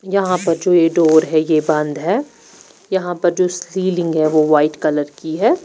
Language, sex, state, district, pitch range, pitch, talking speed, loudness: Hindi, female, Chandigarh, Chandigarh, 155-185 Hz, 170 Hz, 210 wpm, -16 LUFS